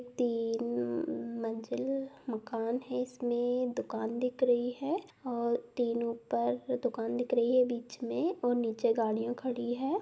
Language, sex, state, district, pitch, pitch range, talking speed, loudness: Bhojpuri, female, Bihar, Saran, 240 Hz, 230-250 Hz, 145 wpm, -33 LUFS